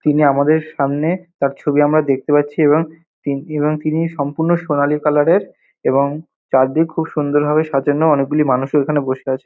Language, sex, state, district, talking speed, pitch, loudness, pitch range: Bengali, male, West Bengal, North 24 Parganas, 170 wpm, 150 Hz, -16 LUFS, 140-155 Hz